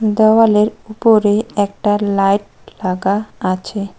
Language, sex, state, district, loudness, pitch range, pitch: Bengali, female, West Bengal, Cooch Behar, -15 LUFS, 200-215 Hz, 205 Hz